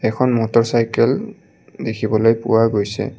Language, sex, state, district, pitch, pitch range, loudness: Assamese, male, Assam, Kamrup Metropolitan, 115 Hz, 110-115 Hz, -17 LUFS